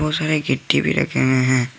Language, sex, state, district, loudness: Hindi, male, Jharkhand, Garhwa, -19 LUFS